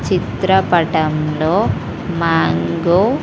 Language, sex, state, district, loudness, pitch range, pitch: Telugu, female, Andhra Pradesh, Sri Satya Sai, -16 LUFS, 155-185 Hz, 160 Hz